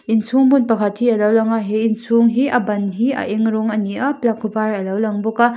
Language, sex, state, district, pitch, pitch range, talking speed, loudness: Mizo, female, Mizoram, Aizawl, 225 Hz, 215-240 Hz, 270 wpm, -17 LUFS